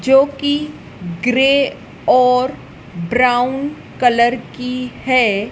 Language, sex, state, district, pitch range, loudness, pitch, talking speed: Hindi, female, Madhya Pradesh, Dhar, 235-265 Hz, -16 LUFS, 250 Hz, 85 wpm